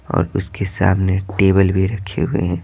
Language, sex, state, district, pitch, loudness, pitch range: Hindi, male, Bihar, Patna, 95 Hz, -18 LUFS, 95-100 Hz